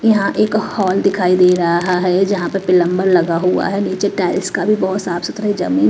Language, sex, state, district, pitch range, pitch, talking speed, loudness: Hindi, female, Maharashtra, Mumbai Suburban, 180-200 Hz, 190 Hz, 215 wpm, -15 LUFS